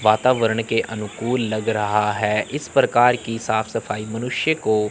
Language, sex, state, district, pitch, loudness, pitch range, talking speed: Hindi, male, Chandigarh, Chandigarh, 110 Hz, -21 LUFS, 105-120 Hz, 145 wpm